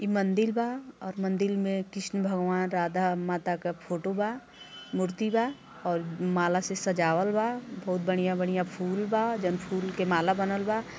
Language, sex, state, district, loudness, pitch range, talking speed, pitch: Bhojpuri, female, Uttar Pradesh, Gorakhpur, -29 LUFS, 180-210 Hz, 160 wpm, 190 Hz